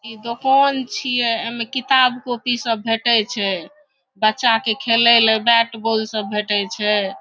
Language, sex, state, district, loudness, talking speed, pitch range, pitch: Maithili, female, Bihar, Saharsa, -18 LUFS, 150 wpm, 215-245 Hz, 230 Hz